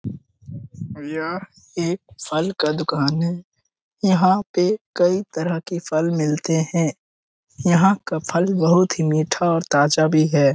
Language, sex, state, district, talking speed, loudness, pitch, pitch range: Hindi, male, Bihar, Jamui, 135 wpm, -20 LUFS, 165 Hz, 155-180 Hz